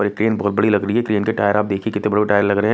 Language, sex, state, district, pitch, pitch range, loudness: Hindi, male, Odisha, Nuapada, 105 Hz, 100-110 Hz, -18 LUFS